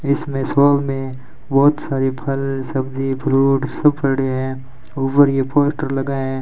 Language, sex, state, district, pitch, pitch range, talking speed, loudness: Hindi, male, Rajasthan, Bikaner, 135 Hz, 135-140 Hz, 150 wpm, -18 LUFS